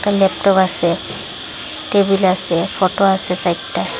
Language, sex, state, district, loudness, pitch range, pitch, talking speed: Bengali, female, Assam, Hailakandi, -17 LUFS, 180-195 Hz, 190 Hz, 105 wpm